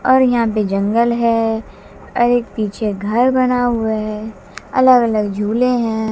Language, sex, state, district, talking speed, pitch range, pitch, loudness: Hindi, female, Haryana, Jhajjar, 155 wpm, 215-245 Hz, 225 Hz, -16 LUFS